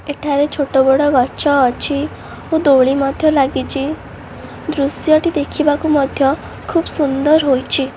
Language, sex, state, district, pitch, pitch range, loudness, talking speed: Odia, female, Odisha, Khordha, 285 Hz, 275-305 Hz, -15 LUFS, 90 wpm